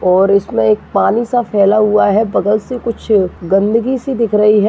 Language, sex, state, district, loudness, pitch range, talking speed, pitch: Hindi, male, Bihar, Jahanabad, -13 LUFS, 195-230 Hz, 190 wpm, 210 Hz